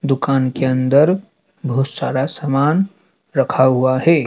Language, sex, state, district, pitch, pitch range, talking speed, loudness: Hindi, male, Madhya Pradesh, Dhar, 140 Hz, 130-170 Hz, 125 wpm, -17 LUFS